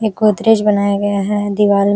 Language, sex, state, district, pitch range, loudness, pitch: Hindi, female, Uttar Pradesh, Jalaun, 200-210 Hz, -14 LUFS, 205 Hz